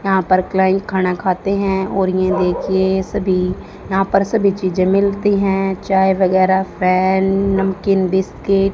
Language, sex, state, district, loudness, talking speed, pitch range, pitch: Hindi, female, Haryana, Charkhi Dadri, -16 LUFS, 150 wpm, 185-195 Hz, 190 Hz